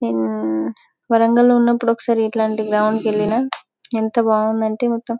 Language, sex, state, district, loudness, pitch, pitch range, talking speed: Telugu, female, Telangana, Karimnagar, -18 LUFS, 220 Hz, 215-235 Hz, 125 wpm